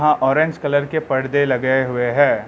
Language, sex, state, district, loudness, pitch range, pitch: Hindi, male, Arunachal Pradesh, Lower Dibang Valley, -18 LUFS, 130-145 Hz, 140 Hz